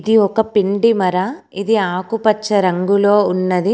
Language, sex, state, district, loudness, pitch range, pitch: Telugu, female, Telangana, Komaram Bheem, -16 LUFS, 185-220 Hz, 205 Hz